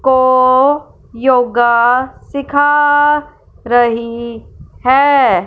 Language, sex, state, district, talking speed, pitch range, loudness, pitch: Hindi, female, Punjab, Fazilka, 55 wpm, 240-285 Hz, -12 LUFS, 260 Hz